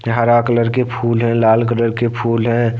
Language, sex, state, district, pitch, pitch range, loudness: Hindi, male, Jharkhand, Deoghar, 115 Hz, 115-120 Hz, -15 LUFS